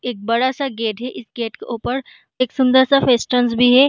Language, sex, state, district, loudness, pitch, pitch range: Hindi, female, Bihar, Gaya, -18 LUFS, 250 Hz, 235-260 Hz